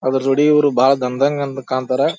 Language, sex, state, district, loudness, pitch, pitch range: Kannada, male, Karnataka, Bijapur, -16 LUFS, 135 Hz, 130-140 Hz